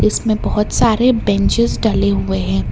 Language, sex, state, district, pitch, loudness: Hindi, male, Karnataka, Bangalore, 205 Hz, -15 LUFS